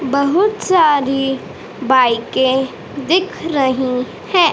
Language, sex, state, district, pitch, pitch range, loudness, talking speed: Hindi, female, Madhya Pradesh, Dhar, 275 Hz, 260-335 Hz, -16 LUFS, 80 wpm